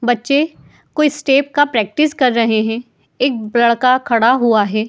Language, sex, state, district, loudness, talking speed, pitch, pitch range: Hindi, female, Uttar Pradesh, Muzaffarnagar, -15 LUFS, 160 wpm, 245 Hz, 225-280 Hz